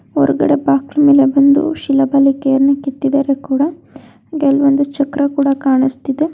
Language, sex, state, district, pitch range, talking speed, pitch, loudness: Kannada, female, Karnataka, Belgaum, 275-285 Hz, 105 wpm, 280 Hz, -14 LUFS